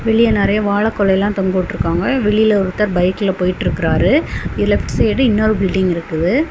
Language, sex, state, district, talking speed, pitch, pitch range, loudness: Tamil, female, Tamil Nadu, Kanyakumari, 140 wpm, 205 Hz, 185-215 Hz, -15 LUFS